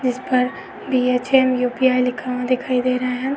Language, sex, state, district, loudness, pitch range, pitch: Hindi, female, Uttar Pradesh, Etah, -19 LUFS, 250-255 Hz, 250 Hz